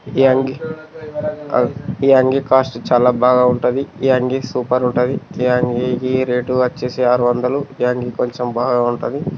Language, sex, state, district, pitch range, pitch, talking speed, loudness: Telugu, male, Telangana, Nalgonda, 125-135 Hz, 125 Hz, 135 wpm, -17 LUFS